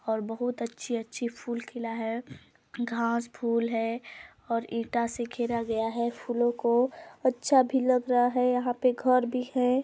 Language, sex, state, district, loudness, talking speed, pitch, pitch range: Hindi, female, Chhattisgarh, Balrampur, -28 LUFS, 165 wpm, 240 Hz, 230-250 Hz